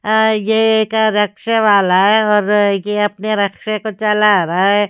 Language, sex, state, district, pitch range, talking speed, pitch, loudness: Hindi, female, Bihar, Kaimur, 205-220 Hz, 160 wpm, 210 Hz, -14 LUFS